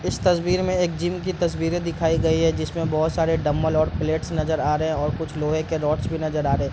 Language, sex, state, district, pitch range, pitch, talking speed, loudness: Hindi, male, Bihar, East Champaran, 155-165 Hz, 160 Hz, 260 wpm, -23 LUFS